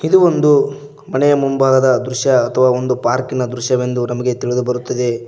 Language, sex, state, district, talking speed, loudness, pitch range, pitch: Kannada, male, Karnataka, Koppal, 125 wpm, -15 LUFS, 125-140 Hz, 130 Hz